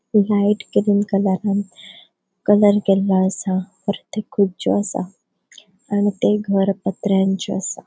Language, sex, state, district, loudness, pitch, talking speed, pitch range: Konkani, female, Goa, North and South Goa, -19 LUFS, 200 Hz, 105 wpm, 190-205 Hz